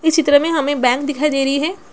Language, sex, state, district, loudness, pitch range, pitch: Hindi, female, Bihar, Gopalganj, -16 LUFS, 280-320 Hz, 290 Hz